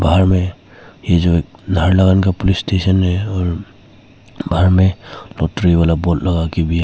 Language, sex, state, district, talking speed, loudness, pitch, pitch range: Hindi, male, Arunachal Pradesh, Papum Pare, 105 wpm, -15 LUFS, 95 Hz, 85-95 Hz